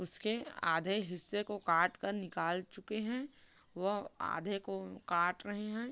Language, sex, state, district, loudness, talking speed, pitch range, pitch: Hindi, male, Chhattisgarh, Korba, -36 LUFS, 150 wpm, 170-215 Hz, 200 Hz